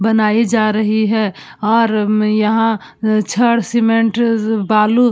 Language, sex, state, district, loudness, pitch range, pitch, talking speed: Hindi, female, Uttar Pradesh, Budaun, -15 LUFS, 215-230 Hz, 220 Hz, 115 wpm